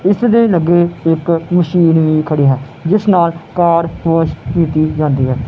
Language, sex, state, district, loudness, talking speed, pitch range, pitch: Punjabi, male, Punjab, Kapurthala, -13 LUFS, 165 wpm, 155-175 Hz, 165 Hz